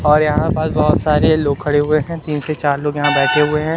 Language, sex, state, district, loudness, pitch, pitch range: Hindi, male, Madhya Pradesh, Katni, -16 LUFS, 150 Hz, 145-155 Hz